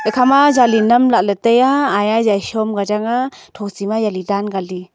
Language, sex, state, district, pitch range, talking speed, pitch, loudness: Wancho, female, Arunachal Pradesh, Longding, 200-245 Hz, 195 wpm, 220 Hz, -15 LUFS